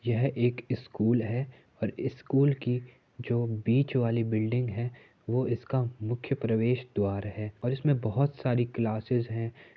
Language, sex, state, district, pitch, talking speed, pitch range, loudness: Hindi, male, Uttar Pradesh, Muzaffarnagar, 120 Hz, 145 wpm, 115-125 Hz, -30 LUFS